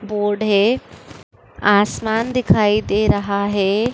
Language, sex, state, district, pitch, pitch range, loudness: Hindi, female, Uttar Pradesh, Budaun, 210 Hz, 200-220 Hz, -17 LUFS